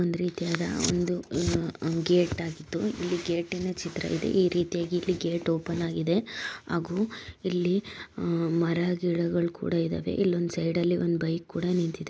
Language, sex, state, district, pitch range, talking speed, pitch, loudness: Kannada, female, Karnataka, Chamarajanagar, 170-180 Hz, 150 wpm, 175 Hz, -28 LUFS